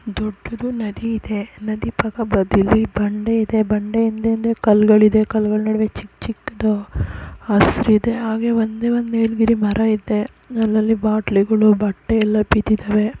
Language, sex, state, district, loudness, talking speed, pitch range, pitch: Kannada, female, Karnataka, Chamarajanagar, -18 LUFS, 110 wpm, 210-225 Hz, 215 Hz